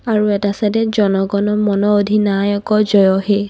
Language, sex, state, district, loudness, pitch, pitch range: Assamese, female, Assam, Kamrup Metropolitan, -15 LUFS, 205 Hz, 200-210 Hz